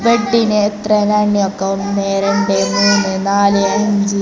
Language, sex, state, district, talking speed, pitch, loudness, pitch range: Malayalam, female, Kerala, Kasaragod, 155 wpm, 200 Hz, -14 LUFS, 195-210 Hz